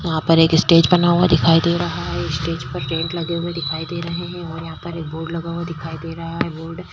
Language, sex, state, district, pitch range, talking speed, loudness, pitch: Hindi, female, Uttar Pradesh, Jyotiba Phule Nagar, 160-170 Hz, 275 wpm, -19 LUFS, 165 Hz